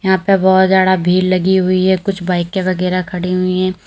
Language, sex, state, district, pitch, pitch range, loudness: Hindi, female, Uttar Pradesh, Lalitpur, 185 Hz, 185-190 Hz, -14 LUFS